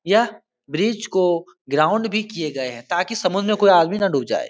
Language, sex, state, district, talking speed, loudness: Hindi, male, Bihar, Supaul, 225 wpm, -20 LUFS